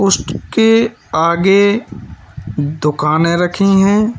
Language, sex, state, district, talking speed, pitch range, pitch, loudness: Hindi, male, Uttar Pradesh, Lalitpur, 70 wpm, 150-200 Hz, 180 Hz, -13 LUFS